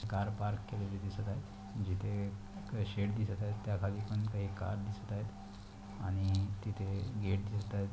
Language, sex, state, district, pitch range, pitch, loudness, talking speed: Marathi, male, Maharashtra, Pune, 100-105 Hz, 100 Hz, -39 LUFS, 165 wpm